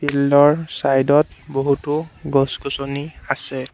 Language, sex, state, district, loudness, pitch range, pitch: Assamese, male, Assam, Sonitpur, -19 LUFS, 135-145 Hz, 140 Hz